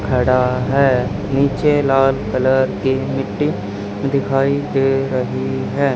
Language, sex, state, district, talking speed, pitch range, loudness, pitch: Hindi, male, Haryana, Charkhi Dadri, 110 wpm, 125-135 Hz, -17 LUFS, 130 Hz